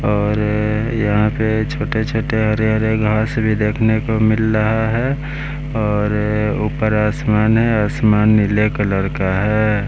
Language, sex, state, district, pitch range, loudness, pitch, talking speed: Hindi, male, Bihar, West Champaran, 105-110 Hz, -17 LUFS, 110 Hz, 125 wpm